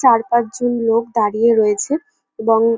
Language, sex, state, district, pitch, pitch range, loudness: Bengali, female, West Bengal, North 24 Parganas, 230 Hz, 225-240 Hz, -17 LUFS